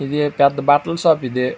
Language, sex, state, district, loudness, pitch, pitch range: Telugu, male, Andhra Pradesh, Srikakulam, -17 LUFS, 145 Hz, 140-150 Hz